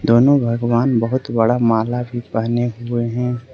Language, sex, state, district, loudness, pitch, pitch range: Hindi, male, Arunachal Pradesh, Lower Dibang Valley, -18 LUFS, 120 Hz, 115-125 Hz